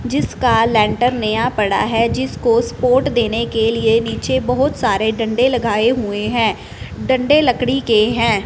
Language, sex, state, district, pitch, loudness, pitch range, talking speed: Hindi, female, Punjab, Fazilka, 230 Hz, -16 LUFS, 220-250 Hz, 150 wpm